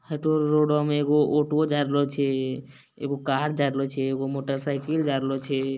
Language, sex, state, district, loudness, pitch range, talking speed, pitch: Maithili, male, Bihar, Bhagalpur, -25 LUFS, 135-150 Hz, 220 wpm, 140 Hz